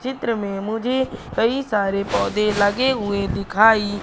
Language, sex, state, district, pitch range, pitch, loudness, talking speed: Hindi, female, Madhya Pradesh, Katni, 205-250 Hz, 215 Hz, -20 LUFS, 135 wpm